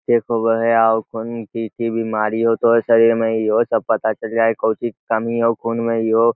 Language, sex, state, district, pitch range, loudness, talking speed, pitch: Magahi, male, Bihar, Lakhisarai, 110-115 Hz, -18 LUFS, 235 wpm, 115 Hz